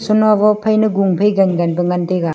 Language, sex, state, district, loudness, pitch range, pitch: Wancho, female, Arunachal Pradesh, Longding, -14 LUFS, 180-215 Hz, 200 Hz